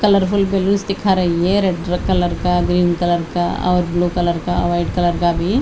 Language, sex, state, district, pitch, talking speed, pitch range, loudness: Hindi, female, Haryana, Charkhi Dadri, 180 Hz, 200 wpm, 175-195 Hz, -17 LUFS